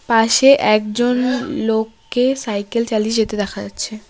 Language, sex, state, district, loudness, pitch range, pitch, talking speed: Bengali, female, West Bengal, Cooch Behar, -17 LUFS, 215-250 Hz, 225 Hz, 115 wpm